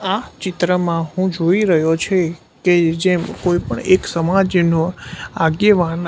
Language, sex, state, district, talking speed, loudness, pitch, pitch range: Gujarati, male, Gujarat, Gandhinagar, 130 wpm, -17 LUFS, 175 Hz, 165-185 Hz